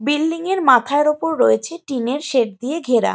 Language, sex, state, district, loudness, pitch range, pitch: Bengali, female, West Bengal, Jalpaiguri, -18 LUFS, 250-320 Hz, 285 Hz